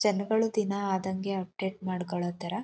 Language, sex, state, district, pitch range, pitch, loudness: Kannada, female, Karnataka, Chamarajanagar, 185-210 Hz, 190 Hz, -31 LUFS